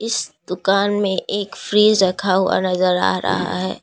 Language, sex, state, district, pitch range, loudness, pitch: Hindi, female, Assam, Kamrup Metropolitan, 180-205 Hz, -18 LUFS, 190 Hz